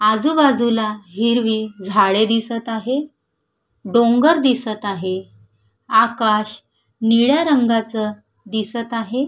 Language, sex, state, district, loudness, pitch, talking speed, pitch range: Marathi, female, Maharashtra, Sindhudurg, -18 LUFS, 225 Hz, 85 wpm, 210-235 Hz